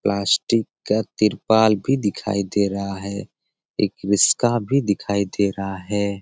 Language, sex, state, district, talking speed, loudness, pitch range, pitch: Hindi, male, Bihar, Jamui, 145 wpm, -21 LUFS, 100-110 Hz, 100 Hz